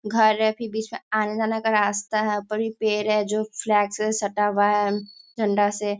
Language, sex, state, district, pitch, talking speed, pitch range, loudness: Hindi, female, Bihar, Sitamarhi, 215 Hz, 220 wpm, 205-220 Hz, -23 LUFS